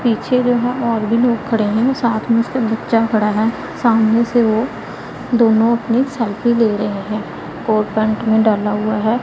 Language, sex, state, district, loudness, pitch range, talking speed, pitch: Hindi, female, Punjab, Pathankot, -16 LUFS, 220-235 Hz, 190 wpm, 225 Hz